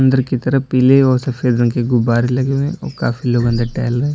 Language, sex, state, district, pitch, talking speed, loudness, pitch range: Hindi, male, Uttar Pradesh, Lalitpur, 125 Hz, 260 wpm, -16 LUFS, 120-135 Hz